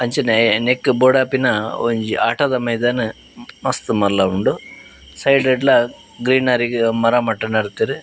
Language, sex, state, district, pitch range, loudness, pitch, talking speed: Tulu, male, Karnataka, Dakshina Kannada, 110-130 Hz, -17 LUFS, 120 Hz, 110 wpm